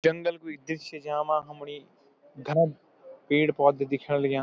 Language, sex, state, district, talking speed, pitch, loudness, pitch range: Garhwali, male, Uttarakhand, Uttarkashi, 135 wpm, 150 Hz, -27 LUFS, 140-160 Hz